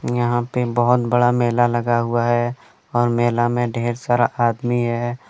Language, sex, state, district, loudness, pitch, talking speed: Hindi, male, Jharkhand, Deoghar, -19 LUFS, 120 Hz, 180 wpm